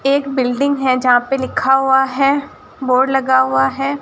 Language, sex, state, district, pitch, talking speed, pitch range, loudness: Hindi, female, Rajasthan, Barmer, 265 Hz, 180 wpm, 255-275 Hz, -15 LUFS